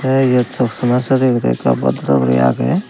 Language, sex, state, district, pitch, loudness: Chakma, male, Tripura, Dhalai, 120 Hz, -15 LUFS